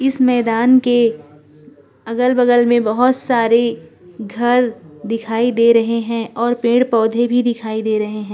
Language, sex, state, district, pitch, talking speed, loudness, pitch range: Hindi, female, Uttarakhand, Tehri Garhwal, 230 Hz, 135 wpm, -16 LUFS, 220-245 Hz